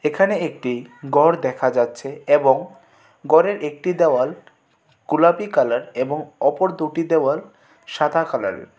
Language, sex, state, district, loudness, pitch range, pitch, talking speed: Bengali, male, Tripura, West Tripura, -19 LUFS, 135-165 Hz, 150 Hz, 115 wpm